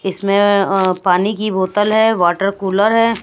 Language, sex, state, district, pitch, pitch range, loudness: Hindi, female, Bihar, West Champaran, 200 Hz, 190-210 Hz, -15 LUFS